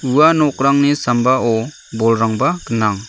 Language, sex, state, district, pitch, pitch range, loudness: Garo, male, Meghalaya, South Garo Hills, 125 Hz, 115-145 Hz, -15 LUFS